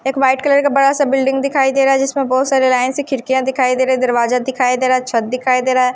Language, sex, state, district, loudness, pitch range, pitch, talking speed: Hindi, female, Himachal Pradesh, Shimla, -15 LUFS, 255-270 Hz, 260 Hz, 290 wpm